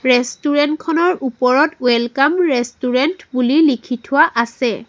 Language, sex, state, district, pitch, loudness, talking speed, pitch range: Assamese, female, Assam, Sonitpur, 260 Hz, -16 LUFS, 110 wpm, 245-300 Hz